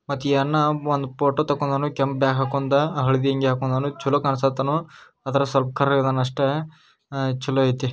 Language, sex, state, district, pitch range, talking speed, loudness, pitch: Kannada, male, Karnataka, Shimoga, 135-145 Hz, 175 wpm, -22 LUFS, 140 Hz